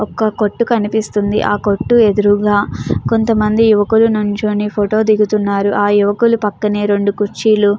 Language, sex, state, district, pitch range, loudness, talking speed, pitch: Telugu, female, Andhra Pradesh, Chittoor, 205-220 Hz, -14 LUFS, 130 wpm, 210 Hz